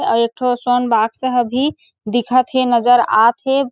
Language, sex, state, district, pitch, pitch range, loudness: Chhattisgarhi, female, Chhattisgarh, Sarguja, 245 Hz, 235-255 Hz, -16 LUFS